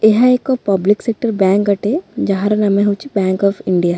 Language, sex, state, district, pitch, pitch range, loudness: Odia, female, Odisha, Khordha, 205 Hz, 195-230 Hz, -15 LUFS